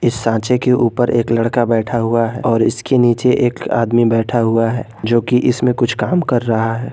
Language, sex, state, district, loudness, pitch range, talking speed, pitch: Hindi, male, Jharkhand, Garhwa, -15 LUFS, 115-125 Hz, 215 wpm, 120 Hz